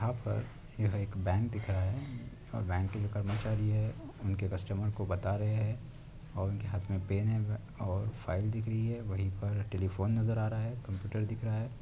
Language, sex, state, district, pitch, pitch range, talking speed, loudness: Hindi, male, Bihar, Vaishali, 105 Hz, 100-115 Hz, 215 wpm, -35 LUFS